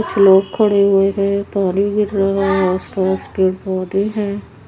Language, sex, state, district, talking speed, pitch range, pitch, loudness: Hindi, female, Haryana, Charkhi Dadri, 180 wpm, 190-200 Hz, 195 Hz, -16 LUFS